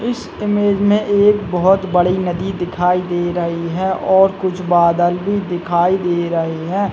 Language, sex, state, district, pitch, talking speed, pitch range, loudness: Hindi, male, Chhattisgarh, Bilaspur, 180 Hz, 165 wpm, 175-200 Hz, -16 LUFS